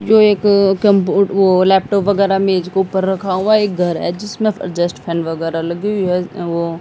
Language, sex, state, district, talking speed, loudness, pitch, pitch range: Hindi, female, Haryana, Jhajjar, 205 wpm, -15 LUFS, 190 Hz, 180-200 Hz